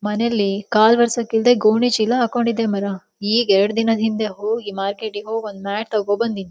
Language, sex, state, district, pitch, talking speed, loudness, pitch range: Kannada, female, Karnataka, Shimoga, 215 Hz, 155 wpm, -19 LUFS, 205-230 Hz